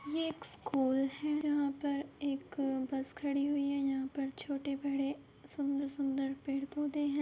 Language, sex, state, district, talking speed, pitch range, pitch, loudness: Hindi, female, Uttar Pradesh, Ghazipur, 150 wpm, 275-290 Hz, 280 Hz, -36 LUFS